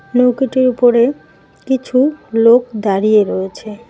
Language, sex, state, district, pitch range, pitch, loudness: Bengali, female, West Bengal, Cooch Behar, 215-255 Hz, 245 Hz, -14 LUFS